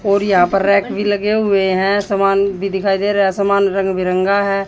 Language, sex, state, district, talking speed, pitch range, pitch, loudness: Hindi, female, Haryana, Jhajjar, 230 wpm, 195-200 Hz, 195 Hz, -15 LUFS